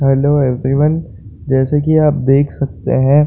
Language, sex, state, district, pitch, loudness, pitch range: Hindi, male, Bihar, Saran, 135 Hz, -14 LUFS, 130-150 Hz